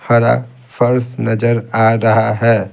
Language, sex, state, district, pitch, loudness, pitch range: Hindi, male, Bihar, Patna, 115 Hz, -14 LUFS, 110-120 Hz